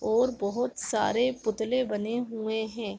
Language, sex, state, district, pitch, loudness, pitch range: Hindi, female, Uttar Pradesh, Jalaun, 225 Hz, -29 LUFS, 220-245 Hz